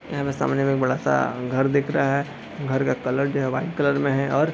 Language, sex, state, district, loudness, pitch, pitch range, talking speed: Hindi, male, Bihar, East Champaran, -23 LUFS, 140 Hz, 135-140 Hz, 290 wpm